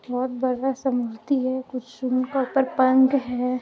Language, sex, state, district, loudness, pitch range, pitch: Hindi, female, Bihar, Muzaffarpur, -23 LUFS, 250-265 Hz, 255 Hz